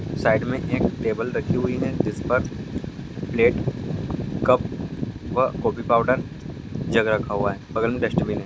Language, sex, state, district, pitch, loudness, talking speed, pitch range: Hindi, male, Andhra Pradesh, Krishna, 115 Hz, -24 LUFS, 120 wpm, 110-135 Hz